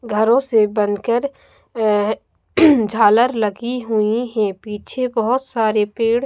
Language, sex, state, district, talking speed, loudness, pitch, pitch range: Hindi, female, Bihar, Katihar, 115 wpm, -17 LUFS, 225 Hz, 210-245 Hz